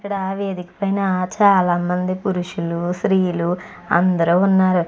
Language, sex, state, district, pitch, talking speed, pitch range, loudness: Telugu, female, Andhra Pradesh, Krishna, 185 Hz, 110 wpm, 175-195 Hz, -19 LUFS